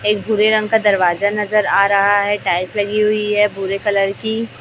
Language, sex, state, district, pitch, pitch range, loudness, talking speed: Hindi, female, Chhattisgarh, Raipur, 205 Hz, 200-215 Hz, -16 LUFS, 210 wpm